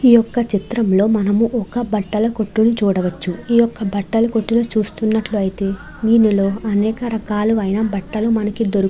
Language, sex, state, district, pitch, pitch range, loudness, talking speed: Telugu, female, Andhra Pradesh, Krishna, 220 Hz, 200-225 Hz, -17 LUFS, 140 wpm